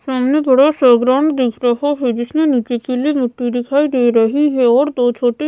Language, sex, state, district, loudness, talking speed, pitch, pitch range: Hindi, female, Odisha, Sambalpur, -14 LUFS, 195 wpm, 255 Hz, 245-285 Hz